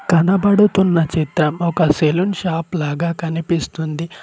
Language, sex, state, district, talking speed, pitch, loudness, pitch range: Telugu, male, Telangana, Mahabubabad, 100 wpm, 165 Hz, -17 LUFS, 160-180 Hz